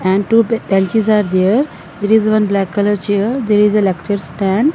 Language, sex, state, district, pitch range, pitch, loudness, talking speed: English, female, Punjab, Fazilka, 195-215 Hz, 205 Hz, -14 LUFS, 200 wpm